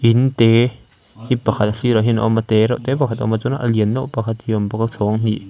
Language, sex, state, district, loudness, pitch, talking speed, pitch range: Mizo, male, Mizoram, Aizawl, -18 LUFS, 115 Hz, 295 wpm, 110-120 Hz